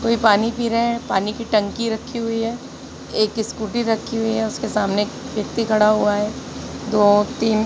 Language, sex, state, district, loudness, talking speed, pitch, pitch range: Hindi, female, Madhya Pradesh, Katni, -20 LUFS, 195 wpm, 225 Hz, 210-230 Hz